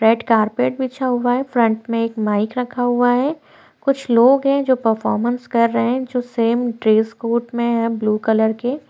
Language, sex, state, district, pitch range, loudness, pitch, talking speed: Hindi, female, Chhattisgarh, Korba, 225-250 Hz, -18 LUFS, 240 Hz, 195 wpm